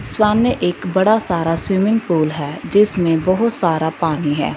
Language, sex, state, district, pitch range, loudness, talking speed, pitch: Hindi, female, Punjab, Fazilka, 165-210 Hz, -17 LUFS, 160 wpm, 180 Hz